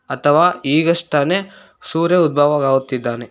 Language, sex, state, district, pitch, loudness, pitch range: Kannada, male, Karnataka, Bangalore, 150 Hz, -16 LUFS, 135-175 Hz